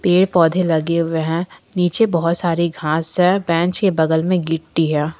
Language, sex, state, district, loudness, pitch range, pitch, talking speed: Hindi, female, Jharkhand, Ranchi, -17 LUFS, 165-180 Hz, 170 Hz, 185 wpm